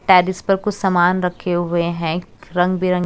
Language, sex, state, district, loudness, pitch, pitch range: Hindi, female, Chhattisgarh, Raipur, -18 LUFS, 180 Hz, 175-185 Hz